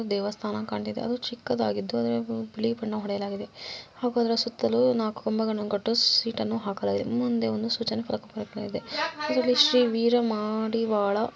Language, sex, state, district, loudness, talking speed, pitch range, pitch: Kannada, female, Karnataka, Mysore, -27 LUFS, 145 wpm, 205-240 Hz, 225 Hz